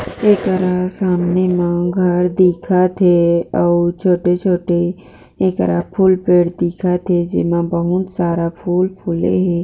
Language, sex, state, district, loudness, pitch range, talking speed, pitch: Chhattisgarhi, female, Chhattisgarh, Jashpur, -16 LUFS, 175-185 Hz, 130 wpm, 180 Hz